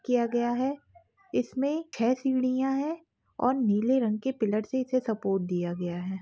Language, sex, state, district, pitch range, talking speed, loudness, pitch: Hindi, female, Jharkhand, Sahebganj, 215-265 Hz, 175 wpm, -28 LUFS, 250 Hz